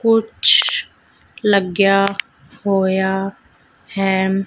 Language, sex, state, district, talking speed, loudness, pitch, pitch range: Punjabi, female, Punjab, Fazilka, 55 wpm, -17 LUFS, 195 Hz, 190-205 Hz